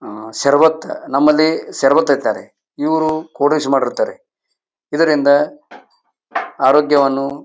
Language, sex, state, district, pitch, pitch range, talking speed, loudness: Kannada, male, Karnataka, Bijapur, 150 Hz, 140-165 Hz, 80 wpm, -15 LUFS